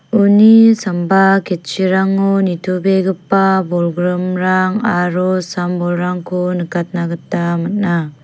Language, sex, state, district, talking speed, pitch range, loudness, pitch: Garo, female, Meghalaya, South Garo Hills, 75 wpm, 175-195 Hz, -14 LUFS, 185 Hz